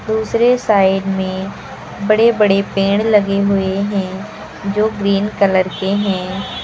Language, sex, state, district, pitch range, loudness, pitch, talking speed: Hindi, female, Uttar Pradesh, Lucknow, 195-210 Hz, -16 LUFS, 200 Hz, 125 wpm